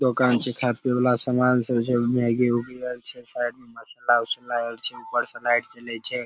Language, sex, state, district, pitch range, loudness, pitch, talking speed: Maithili, male, Bihar, Darbhanga, 120-125 Hz, -24 LUFS, 125 Hz, 230 wpm